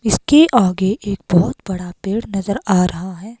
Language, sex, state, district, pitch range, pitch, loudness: Hindi, female, Himachal Pradesh, Shimla, 185-215 Hz, 195 Hz, -16 LUFS